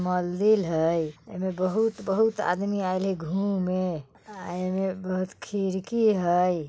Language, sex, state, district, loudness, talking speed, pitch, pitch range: Bajjika, female, Bihar, Vaishali, -26 LUFS, 150 wpm, 185 Hz, 175-200 Hz